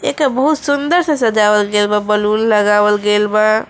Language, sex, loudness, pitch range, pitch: Bhojpuri, female, -13 LUFS, 210-275 Hz, 215 Hz